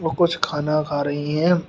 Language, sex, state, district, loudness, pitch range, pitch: Hindi, male, Uttar Pradesh, Shamli, -22 LUFS, 145-170 Hz, 155 Hz